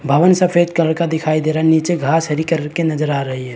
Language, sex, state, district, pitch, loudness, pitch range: Hindi, male, Chhattisgarh, Bilaspur, 160 Hz, -16 LUFS, 150-170 Hz